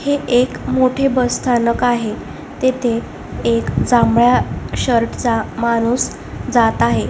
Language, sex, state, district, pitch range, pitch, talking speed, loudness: Marathi, female, Maharashtra, Solapur, 225-250 Hz, 235 Hz, 120 wpm, -16 LUFS